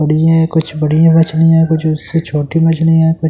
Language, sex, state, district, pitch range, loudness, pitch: Hindi, male, Delhi, New Delhi, 155-165 Hz, -12 LUFS, 160 Hz